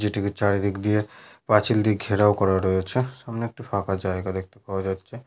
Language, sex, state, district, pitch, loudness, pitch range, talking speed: Bengali, male, Jharkhand, Sahebganj, 100 Hz, -24 LUFS, 95-110 Hz, 170 wpm